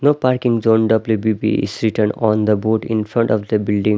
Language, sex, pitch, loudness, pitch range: English, male, 110 Hz, -17 LUFS, 105-115 Hz